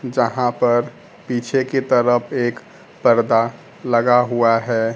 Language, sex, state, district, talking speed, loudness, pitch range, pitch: Hindi, male, Bihar, Kaimur, 120 wpm, -18 LUFS, 115-125 Hz, 120 Hz